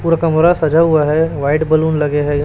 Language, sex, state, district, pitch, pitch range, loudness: Hindi, male, Chhattisgarh, Raipur, 155 Hz, 150-165 Hz, -14 LUFS